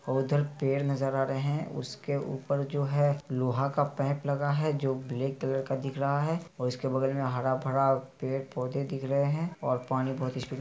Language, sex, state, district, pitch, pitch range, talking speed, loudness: Hindi, male, Bihar, Araria, 135 Hz, 130-145 Hz, 215 wpm, -30 LUFS